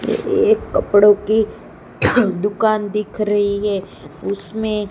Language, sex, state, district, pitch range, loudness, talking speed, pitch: Hindi, female, Gujarat, Gandhinagar, 205-220 Hz, -17 LUFS, 100 wpm, 210 Hz